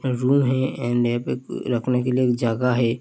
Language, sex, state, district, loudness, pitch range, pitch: Hindi, male, Uttar Pradesh, Hamirpur, -22 LUFS, 120-130 Hz, 125 Hz